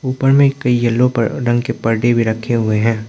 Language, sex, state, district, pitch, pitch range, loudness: Hindi, male, Arunachal Pradesh, Lower Dibang Valley, 120 Hz, 115-125 Hz, -15 LUFS